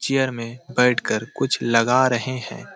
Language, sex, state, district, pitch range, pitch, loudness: Hindi, male, Jharkhand, Sahebganj, 120-130 Hz, 125 Hz, -21 LUFS